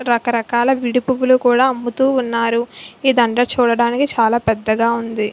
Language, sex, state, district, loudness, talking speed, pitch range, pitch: Telugu, female, Andhra Pradesh, Visakhapatnam, -16 LUFS, 145 wpm, 230-255 Hz, 240 Hz